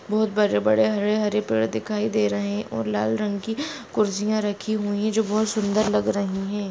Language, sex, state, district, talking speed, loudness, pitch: Hindi, female, Maharashtra, Aurangabad, 195 wpm, -23 LUFS, 205 Hz